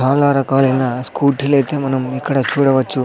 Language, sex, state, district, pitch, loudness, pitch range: Telugu, male, Andhra Pradesh, Sri Satya Sai, 135 Hz, -16 LUFS, 130-140 Hz